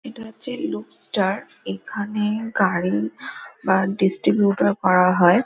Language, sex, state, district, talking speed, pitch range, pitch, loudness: Bengali, female, West Bengal, Dakshin Dinajpur, 100 wpm, 185-225 Hz, 200 Hz, -21 LUFS